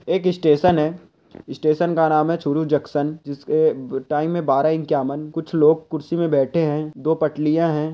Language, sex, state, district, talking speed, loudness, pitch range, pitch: Hindi, male, Rajasthan, Churu, 160 wpm, -20 LUFS, 150-160 Hz, 155 Hz